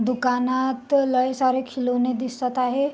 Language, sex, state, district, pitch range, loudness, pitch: Marathi, female, Maharashtra, Sindhudurg, 250-260 Hz, -23 LUFS, 255 Hz